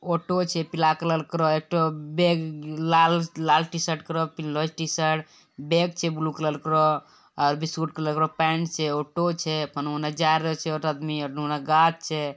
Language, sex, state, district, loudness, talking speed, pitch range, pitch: Maithili, male, Bihar, Bhagalpur, -25 LUFS, 190 wpm, 155-165 Hz, 155 Hz